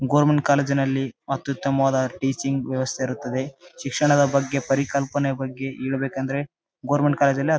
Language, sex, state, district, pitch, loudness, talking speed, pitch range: Kannada, male, Karnataka, Bellary, 135 Hz, -23 LUFS, 120 wpm, 135-140 Hz